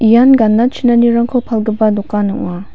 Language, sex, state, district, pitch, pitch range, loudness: Garo, female, Meghalaya, West Garo Hills, 225 Hz, 215-240 Hz, -12 LUFS